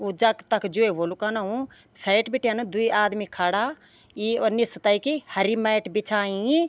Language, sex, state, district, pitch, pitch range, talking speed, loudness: Garhwali, female, Uttarakhand, Tehri Garhwal, 215 Hz, 205-230 Hz, 160 wpm, -24 LUFS